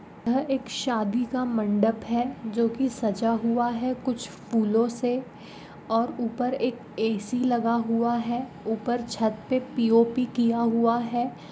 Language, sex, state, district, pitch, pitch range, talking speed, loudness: Hindi, female, Goa, North and South Goa, 235 Hz, 225-245 Hz, 140 wpm, -26 LUFS